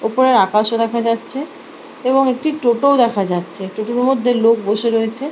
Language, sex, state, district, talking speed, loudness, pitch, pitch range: Bengali, female, West Bengal, Purulia, 215 wpm, -16 LUFS, 235 Hz, 220-260 Hz